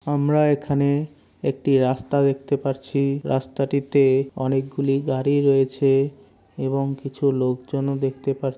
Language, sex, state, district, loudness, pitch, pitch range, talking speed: Bengali, male, West Bengal, Kolkata, -22 LUFS, 135 Hz, 135-140 Hz, 120 wpm